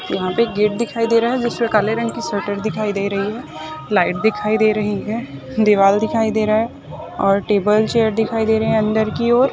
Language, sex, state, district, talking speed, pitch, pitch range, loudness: Hindi, female, Maharashtra, Nagpur, 235 wpm, 215 Hz, 205-225 Hz, -18 LUFS